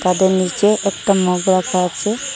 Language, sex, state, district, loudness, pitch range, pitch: Bengali, female, Assam, Hailakandi, -16 LUFS, 180-205 Hz, 190 Hz